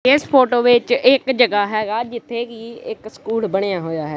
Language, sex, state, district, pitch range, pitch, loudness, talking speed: Punjabi, male, Punjab, Kapurthala, 215-245 Hz, 235 Hz, -17 LUFS, 185 wpm